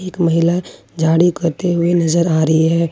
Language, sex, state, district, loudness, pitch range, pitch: Hindi, female, Jharkhand, Ranchi, -15 LUFS, 165-175 Hz, 170 Hz